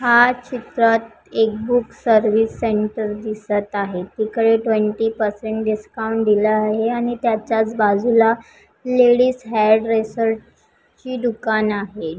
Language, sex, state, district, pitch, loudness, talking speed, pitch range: Marathi, female, Maharashtra, Pune, 225 Hz, -19 LUFS, 115 wpm, 215-230 Hz